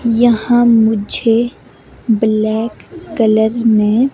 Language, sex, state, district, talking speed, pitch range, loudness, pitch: Hindi, female, Himachal Pradesh, Shimla, 75 wpm, 220-240 Hz, -13 LUFS, 225 Hz